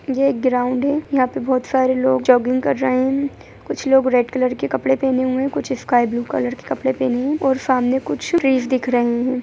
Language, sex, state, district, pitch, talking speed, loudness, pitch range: Hindi, male, Bihar, Gaya, 255 Hz, 235 wpm, -18 LUFS, 245-265 Hz